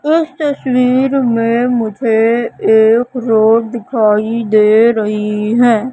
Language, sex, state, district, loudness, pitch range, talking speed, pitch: Hindi, female, Madhya Pradesh, Katni, -12 LUFS, 220-250 Hz, 100 wpm, 230 Hz